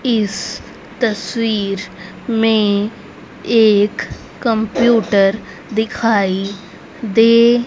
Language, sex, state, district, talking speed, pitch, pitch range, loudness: Hindi, female, Haryana, Rohtak, 55 wpm, 220 Hz, 200-230 Hz, -16 LUFS